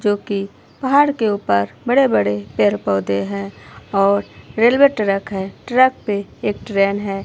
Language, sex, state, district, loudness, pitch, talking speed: Hindi, female, Himachal Pradesh, Shimla, -18 LUFS, 200 Hz, 140 wpm